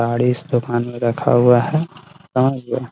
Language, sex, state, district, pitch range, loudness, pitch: Hindi, male, Bihar, Muzaffarpur, 120-150 Hz, -18 LUFS, 125 Hz